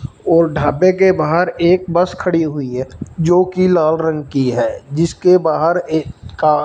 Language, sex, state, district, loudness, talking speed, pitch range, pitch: Hindi, male, Punjab, Fazilka, -15 LUFS, 170 wpm, 150-180 Hz, 165 Hz